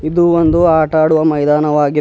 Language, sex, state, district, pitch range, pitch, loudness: Kannada, female, Karnataka, Bidar, 150-165 Hz, 155 Hz, -12 LUFS